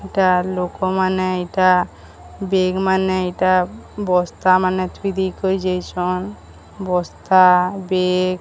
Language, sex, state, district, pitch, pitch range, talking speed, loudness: Odia, female, Odisha, Sambalpur, 185 Hz, 180-190 Hz, 105 wpm, -18 LUFS